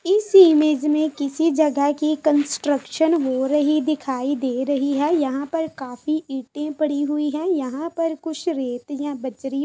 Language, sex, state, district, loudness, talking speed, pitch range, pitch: Hindi, female, Uttar Pradesh, Jalaun, -21 LUFS, 160 wpm, 275-315 Hz, 295 Hz